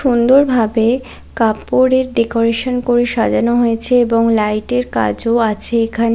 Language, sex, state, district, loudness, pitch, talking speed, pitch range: Bengali, female, West Bengal, Kolkata, -14 LUFS, 235 Hz, 115 wpm, 230-250 Hz